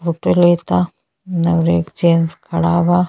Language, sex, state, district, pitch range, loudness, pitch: Bhojpuri, female, Uttar Pradesh, Ghazipur, 165-175 Hz, -16 LUFS, 170 Hz